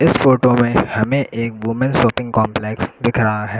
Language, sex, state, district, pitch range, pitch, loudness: Hindi, male, Uttar Pradesh, Lucknow, 110-130 Hz, 120 Hz, -17 LUFS